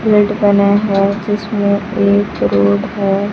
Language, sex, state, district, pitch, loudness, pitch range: Hindi, female, Bihar, Kaimur, 200 Hz, -14 LUFS, 200-205 Hz